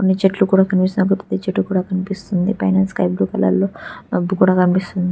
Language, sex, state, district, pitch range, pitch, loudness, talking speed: Telugu, female, Telangana, Karimnagar, 180-190 Hz, 185 Hz, -17 LUFS, 200 wpm